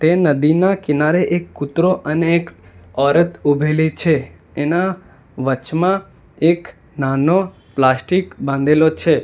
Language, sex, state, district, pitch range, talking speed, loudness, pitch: Gujarati, male, Gujarat, Valsad, 140-175 Hz, 110 wpm, -17 LUFS, 155 Hz